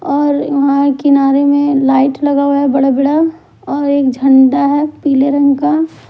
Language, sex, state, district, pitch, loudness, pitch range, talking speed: Hindi, male, Delhi, New Delhi, 280 Hz, -12 LUFS, 270-285 Hz, 155 wpm